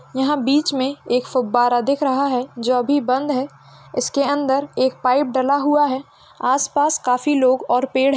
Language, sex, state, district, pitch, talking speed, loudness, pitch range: Hindi, female, Uttarakhand, Uttarkashi, 265 Hz, 190 wpm, -19 LUFS, 255-285 Hz